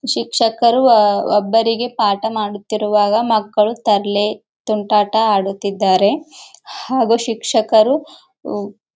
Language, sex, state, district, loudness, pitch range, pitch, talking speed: Kannada, female, Karnataka, Gulbarga, -16 LUFS, 205-235 Hz, 215 Hz, 65 wpm